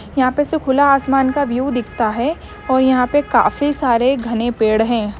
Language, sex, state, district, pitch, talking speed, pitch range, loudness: Hindi, female, Andhra Pradesh, Krishna, 260 Hz, 195 wpm, 235-280 Hz, -16 LUFS